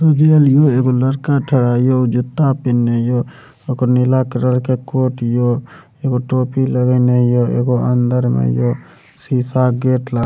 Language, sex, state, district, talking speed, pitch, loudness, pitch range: Maithili, male, Bihar, Supaul, 140 wpm, 125 Hz, -15 LUFS, 125-130 Hz